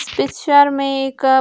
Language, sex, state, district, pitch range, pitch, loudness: Hindi, female, Bihar, Gaya, 270-285 Hz, 275 Hz, -16 LUFS